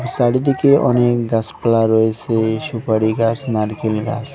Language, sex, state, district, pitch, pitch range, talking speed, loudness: Bengali, male, West Bengal, Cooch Behar, 115 Hz, 110-120 Hz, 110 wpm, -17 LUFS